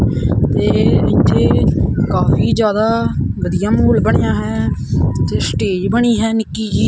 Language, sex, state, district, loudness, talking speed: Punjabi, male, Punjab, Kapurthala, -15 LUFS, 120 wpm